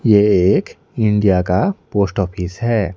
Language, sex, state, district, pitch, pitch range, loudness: Hindi, male, Odisha, Nuapada, 105 Hz, 95-110 Hz, -16 LUFS